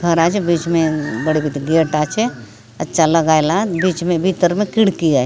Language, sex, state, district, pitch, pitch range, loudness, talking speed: Halbi, female, Chhattisgarh, Bastar, 165 Hz, 155-180 Hz, -16 LUFS, 180 wpm